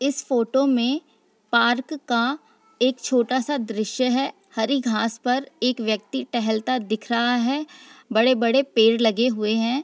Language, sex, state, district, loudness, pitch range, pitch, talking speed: Hindi, female, Bihar, Sitamarhi, -22 LUFS, 230-270 Hz, 245 Hz, 145 wpm